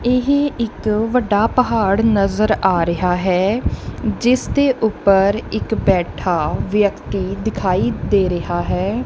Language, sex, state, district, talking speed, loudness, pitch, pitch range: Punjabi, female, Punjab, Kapurthala, 120 wpm, -17 LUFS, 215 Hz, 195-235 Hz